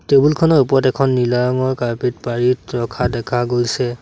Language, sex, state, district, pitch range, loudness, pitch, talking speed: Assamese, male, Assam, Sonitpur, 120-130 Hz, -17 LUFS, 125 Hz, 165 wpm